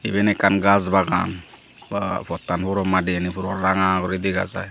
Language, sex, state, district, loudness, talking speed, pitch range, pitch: Chakma, male, Tripura, Dhalai, -21 LUFS, 165 wpm, 90-100 Hz, 95 Hz